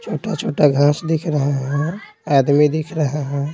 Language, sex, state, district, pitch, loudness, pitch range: Hindi, male, Bihar, Patna, 150 Hz, -18 LUFS, 140-155 Hz